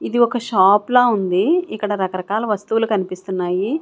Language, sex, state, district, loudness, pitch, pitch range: Telugu, female, Andhra Pradesh, Sri Satya Sai, -18 LUFS, 210 Hz, 190-235 Hz